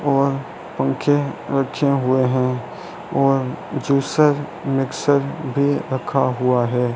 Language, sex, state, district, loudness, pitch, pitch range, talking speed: Hindi, male, Rajasthan, Bikaner, -20 LUFS, 135 Hz, 130-140 Hz, 105 wpm